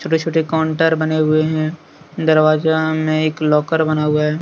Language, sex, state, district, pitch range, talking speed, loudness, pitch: Hindi, male, Jharkhand, Deoghar, 155-160 Hz, 175 wpm, -16 LUFS, 155 Hz